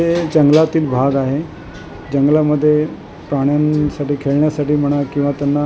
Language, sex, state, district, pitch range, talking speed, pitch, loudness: Marathi, male, Maharashtra, Mumbai Suburban, 140-150 Hz, 115 wpm, 145 Hz, -16 LUFS